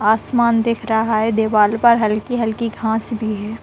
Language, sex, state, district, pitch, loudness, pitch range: Hindi, female, Bihar, Saran, 220 Hz, -17 LUFS, 220-230 Hz